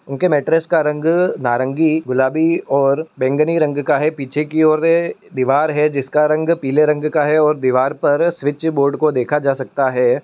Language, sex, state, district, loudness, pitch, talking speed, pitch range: Hindi, male, Uttar Pradesh, Etah, -16 LUFS, 150 Hz, 185 wpm, 135-160 Hz